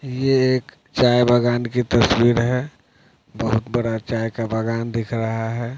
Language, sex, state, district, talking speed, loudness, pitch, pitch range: Hindi, male, Bihar, Patna, 155 wpm, -20 LUFS, 120 Hz, 115-125 Hz